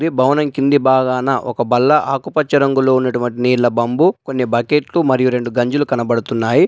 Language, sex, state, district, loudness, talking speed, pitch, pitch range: Telugu, male, Telangana, Adilabad, -15 LUFS, 150 wpm, 130 Hz, 120-140 Hz